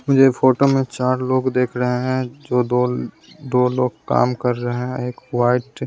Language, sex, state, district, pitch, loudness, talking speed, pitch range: Hindi, male, Bihar, West Champaran, 125 Hz, -19 LUFS, 205 wpm, 125-130 Hz